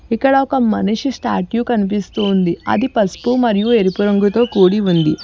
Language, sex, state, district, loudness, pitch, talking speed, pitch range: Telugu, female, Telangana, Hyderabad, -15 LUFS, 215 Hz, 135 wpm, 195-240 Hz